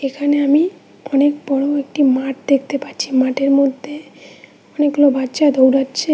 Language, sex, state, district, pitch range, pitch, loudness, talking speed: Bengali, female, West Bengal, Cooch Behar, 270-290 Hz, 280 Hz, -16 LUFS, 125 wpm